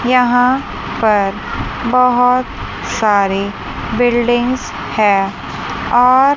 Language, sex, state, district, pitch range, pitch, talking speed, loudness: Hindi, female, Chandigarh, Chandigarh, 210-250 Hz, 245 Hz, 65 wpm, -15 LUFS